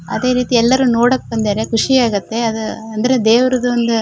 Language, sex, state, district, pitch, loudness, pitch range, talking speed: Kannada, female, Karnataka, Shimoga, 235 Hz, -15 LUFS, 225-250 Hz, 180 wpm